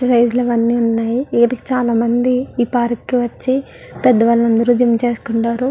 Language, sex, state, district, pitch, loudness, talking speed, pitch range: Telugu, female, Andhra Pradesh, Guntur, 240 Hz, -16 LUFS, 135 wpm, 235-250 Hz